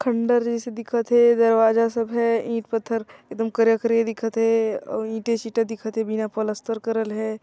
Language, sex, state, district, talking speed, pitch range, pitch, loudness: Chhattisgarhi, female, Chhattisgarh, Sarguja, 180 wpm, 225-230 Hz, 225 Hz, -22 LUFS